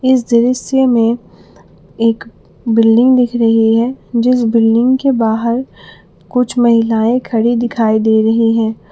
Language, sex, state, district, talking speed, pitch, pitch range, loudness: Hindi, female, Jharkhand, Palamu, 130 wpm, 230 Hz, 225-245 Hz, -13 LUFS